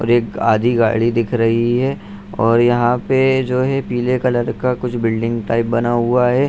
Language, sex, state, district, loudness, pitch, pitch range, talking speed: Hindi, male, Bihar, Saharsa, -16 LUFS, 120 Hz, 115-125 Hz, 195 wpm